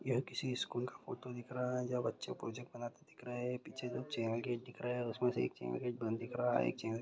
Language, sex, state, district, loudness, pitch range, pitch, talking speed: Maithili, male, Bihar, Supaul, -40 LUFS, 120-125 Hz, 125 Hz, 280 wpm